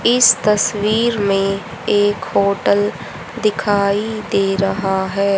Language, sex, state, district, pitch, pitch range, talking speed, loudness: Hindi, female, Haryana, Jhajjar, 200 Hz, 195-210 Hz, 100 wpm, -16 LUFS